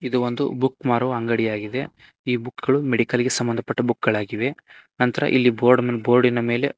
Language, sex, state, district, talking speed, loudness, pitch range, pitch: Kannada, male, Karnataka, Koppal, 170 wpm, -21 LUFS, 120-125 Hz, 125 Hz